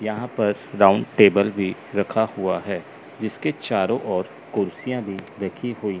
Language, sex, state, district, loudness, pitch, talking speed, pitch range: Hindi, male, Chandigarh, Chandigarh, -22 LUFS, 105 Hz, 150 wpm, 100-110 Hz